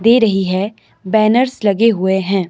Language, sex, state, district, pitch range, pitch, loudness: Hindi, male, Himachal Pradesh, Shimla, 190-225 Hz, 210 Hz, -14 LUFS